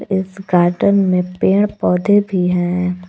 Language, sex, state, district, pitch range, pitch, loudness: Hindi, female, Jharkhand, Palamu, 180-200 Hz, 185 Hz, -15 LUFS